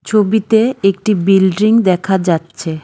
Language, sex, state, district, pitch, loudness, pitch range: Bengali, female, West Bengal, Cooch Behar, 195 Hz, -13 LUFS, 180-215 Hz